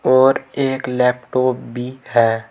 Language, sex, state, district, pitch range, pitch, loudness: Hindi, male, Uttar Pradesh, Saharanpur, 120-130 Hz, 125 Hz, -18 LUFS